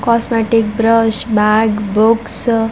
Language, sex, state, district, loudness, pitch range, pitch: Hindi, female, Bihar, Darbhanga, -13 LUFS, 215-230 Hz, 225 Hz